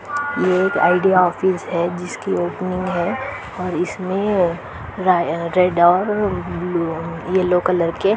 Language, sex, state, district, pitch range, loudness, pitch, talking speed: Hindi, female, Chhattisgarh, Balrampur, 175-190 Hz, -19 LUFS, 180 Hz, 115 wpm